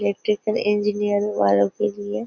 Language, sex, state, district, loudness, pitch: Hindi, female, Maharashtra, Nagpur, -21 LUFS, 160 Hz